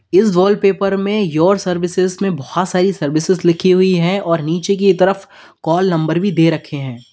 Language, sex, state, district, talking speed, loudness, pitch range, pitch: Hindi, male, Uttar Pradesh, Lalitpur, 185 wpm, -15 LUFS, 165-195 Hz, 185 Hz